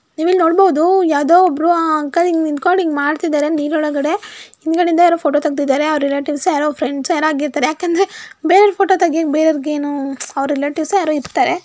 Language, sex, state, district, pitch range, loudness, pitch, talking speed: Kannada, female, Karnataka, Mysore, 295-350 Hz, -15 LUFS, 315 Hz, 160 wpm